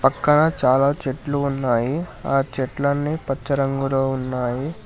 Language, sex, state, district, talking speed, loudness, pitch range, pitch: Telugu, male, Telangana, Hyderabad, 110 wpm, -21 LUFS, 130-145 Hz, 135 Hz